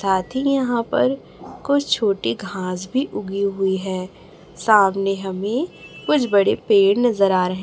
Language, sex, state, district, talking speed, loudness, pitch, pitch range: Hindi, female, Chhattisgarh, Raipur, 140 wpm, -20 LUFS, 200 Hz, 190-240 Hz